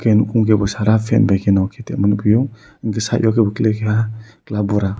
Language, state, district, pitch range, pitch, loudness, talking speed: Kokborok, Tripura, Dhalai, 105-110 Hz, 110 Hz, -17 LUFS, 205 wpm